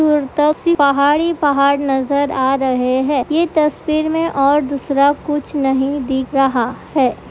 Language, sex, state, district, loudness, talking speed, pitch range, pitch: Hindi, female, Bihar, Madhepura, -16 LUFS, 165 wpm, 270-300 Hz, 280 Hz